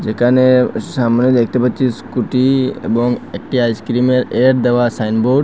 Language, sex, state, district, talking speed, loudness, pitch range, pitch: Bengali, male, Assam, Hailakandi, 130 wpm, -15 LUFS, 120-130 Hz, 125 Hz